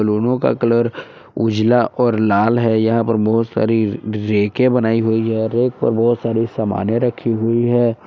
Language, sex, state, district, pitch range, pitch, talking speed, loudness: Hindi, male, Jharkhand, Palamu, 110-120 Hz, 115 Hz, 180 wpm, -17 LUFS